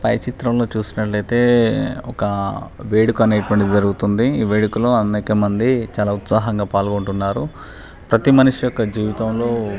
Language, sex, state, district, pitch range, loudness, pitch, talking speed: Telugu, male, Telangana, Nalgonda, 105-120 Hz, -18 LUFS, 110 Hz, 130 wpm